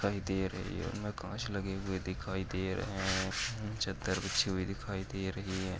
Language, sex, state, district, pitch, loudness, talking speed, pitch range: Bhojpuri, male, Uttar Pradesh, Gorakhpur, 95 Hz, -36 LUFS, 195 wpm, 95-100 Hz